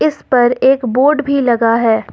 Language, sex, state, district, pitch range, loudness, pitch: Hindi, female, Jharkhand, Ranchi, 230-270 Hz, -13 LUFS, 245 Hz